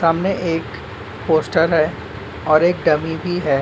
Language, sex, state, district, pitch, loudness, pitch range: Hindi, male, Andhra Pradesh, Srikakulam, 160 Hz, -18 LUFS, 150-170 Hz